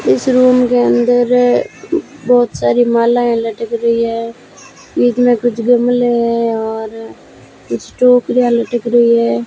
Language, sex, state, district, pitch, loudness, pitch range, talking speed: Hindi, female, Rajasthan, Bikaner, 240 Hz, -13 LUFS, 230-245 Hz, 125 wpm